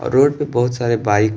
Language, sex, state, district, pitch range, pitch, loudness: Hindi, male, Chhattisgarh, Bastar, 110-135 Hz, 120 Hz, -17 LUFS